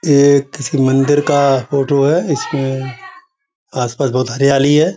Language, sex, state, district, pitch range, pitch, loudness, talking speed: Hindi, male, Uttar Pradesh, Etah, 135-150 Hz, 140 Hz, -14 LUFS, 135 wpm